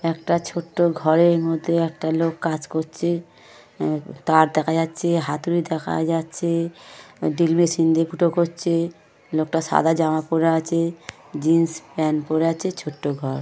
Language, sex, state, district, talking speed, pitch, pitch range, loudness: Bengali, male, West Bengal, Paschim Medinipur, 140 wpm, 165 Hz, 160-170 Hz, -22 LUFS